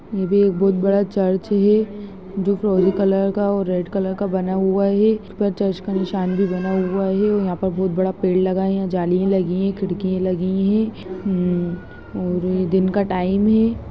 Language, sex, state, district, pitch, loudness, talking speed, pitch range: Hindi, female, Bihar, Muzaffarpur, 190 Hz, -19 LUFS, 185 wpm, 185-200 Hz